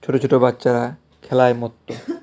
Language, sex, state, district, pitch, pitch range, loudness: Bengali, male, Tripura, West Tripura, 125 Hz, 120-135 Hz, -18 LUFS